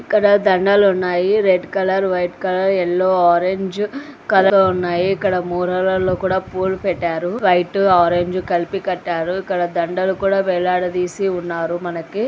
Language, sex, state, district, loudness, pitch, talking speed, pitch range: Telugu, female, Andhra Pradesh, Anantapur, -17 LUFS, 185 Hz, 130 wpm, 175-195 Hz